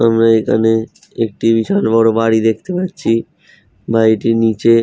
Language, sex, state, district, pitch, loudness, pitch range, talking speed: Bengali, male, West Bengal, Jhargram, 115 Hz, -14 LUFS, 110-115 Hz, 135 wpm